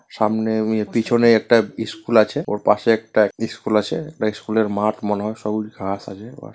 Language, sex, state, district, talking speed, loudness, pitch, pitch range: Bengali, male, West Bengal, Purulia, 175 wpm, -20 LUFS, 110 Hz, 105-115 Hz